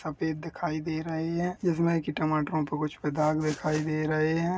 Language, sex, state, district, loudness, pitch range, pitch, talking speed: Hindi, male, Chhattisgarh, Rajnandgaon, -29 LUFS, 155-165 Hz, 155 Hz, 195 wpm